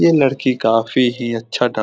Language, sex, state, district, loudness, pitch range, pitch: Hindi, male, Bihar, Saran, -17 LUFS, 115-130 Hz, 125 Hz